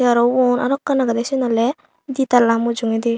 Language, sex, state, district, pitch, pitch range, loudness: Chakma, female, Tripura, Unakoti, 245 Hz, 235-265 Hz, -18 LUFS